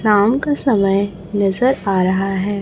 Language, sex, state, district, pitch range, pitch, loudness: Hindi, female, Chhattisgarh, Raipur, 195-235 Hz, 205 Hz, -17 LUFS